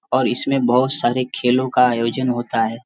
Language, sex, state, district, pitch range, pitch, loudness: Hindi, male, Uttar Pradesh, Varanasi, 120-130 Hz, 125 Hz, -18 LUFS